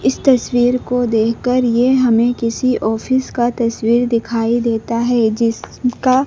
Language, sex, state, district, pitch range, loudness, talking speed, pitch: Hindi, female, Madhya Pradesh, Dhar, 230-250 Hz, -16 LUFS, 135 wpm, 240 Hz